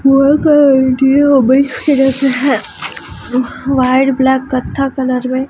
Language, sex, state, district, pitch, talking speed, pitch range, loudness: Hindi, male, Chhattisgarh, Raipur, 270 Hz, 140 wpm, 260-275 Hz, -12 LUFS